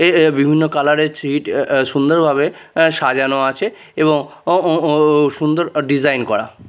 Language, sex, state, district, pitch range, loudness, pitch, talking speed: Bengali, male, Odisha, Nuapada, 140-160 Hz, -15 LUFS, 150 Hz, 170 wpm